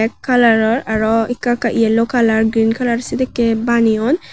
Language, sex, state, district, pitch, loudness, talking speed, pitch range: Chakma, female, Tripura, West Tripura, 230 Hz, -15 LUFS, 150 wpm, 225-240 Hz